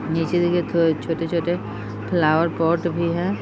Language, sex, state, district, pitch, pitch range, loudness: Hindi, female, Bihar, Sitamarhi, 170 Hz, 160-170 Hz, -21 LUFS